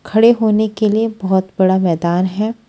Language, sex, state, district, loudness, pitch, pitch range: Hindi, female, Punjab, Fazilka, -15 LUFS, 215 Hz, 190-220 Hz